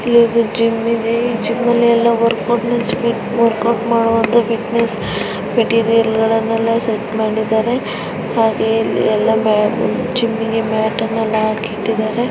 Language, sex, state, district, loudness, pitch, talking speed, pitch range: Kannada, female, Karnataka, Chamarajanagar, -16 LUFS, 230 Hz, 100 wpm, 220-235 Hz